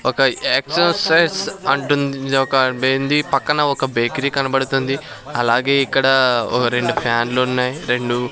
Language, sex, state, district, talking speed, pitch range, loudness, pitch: Telugu, male, Andhra Pradesh, Sri Satya Sai, 135 wpm, 125-140 Hz, -17 LUFS, 135 Hz